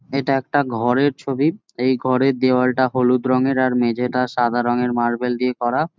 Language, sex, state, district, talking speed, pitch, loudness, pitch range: Bengali, male, West Bengal, Jhargram, 160 wpm, 130 Hz, -19 LUFS, 125-135 Hz